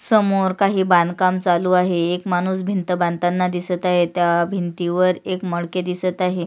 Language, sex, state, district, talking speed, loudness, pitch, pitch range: Marathi, female, Maharashtra, Sindhudurg, 160 wpm, -19 LUFS, 180 Hz, 175-185 Hz